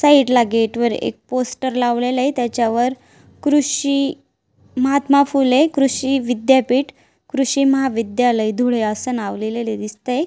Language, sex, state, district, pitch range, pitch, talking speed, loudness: Marathi, female, Maharashtra, Dhule, 235-275 Hz, 255 Hz, 115 wpm, -18 LUFS